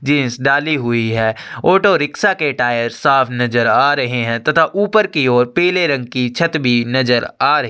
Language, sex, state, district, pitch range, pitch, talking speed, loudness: Hindi, male, Chhattisgarh, Sukma, 120-150 Hz, 130 Hz, 195 wpm, -15 LUFS